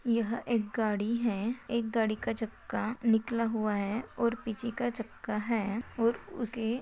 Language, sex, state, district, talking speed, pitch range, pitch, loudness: Hindi, female, Maharashtra, Pune, 160 wpm, 220-235 Hz, 230 Hz, -32 LUFS